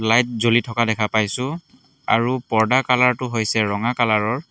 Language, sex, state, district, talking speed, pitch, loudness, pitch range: Assamese, male, Assam, Hailakandi, 145 wpm, 115 Hz, -19 LUFS, 110-125 Hz